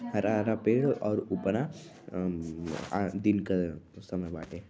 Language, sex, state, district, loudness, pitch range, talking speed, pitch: Bhojpuri, male, Uttar Pradesh, Varanasi, -31 LUFS, 85-100 Hz, 115 wpm, 90 Hz